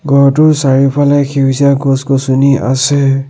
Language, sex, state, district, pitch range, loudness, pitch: Assamese, male, Assam, Sonitpur, 135-140 Hz, -10 LUFS, 140 Hz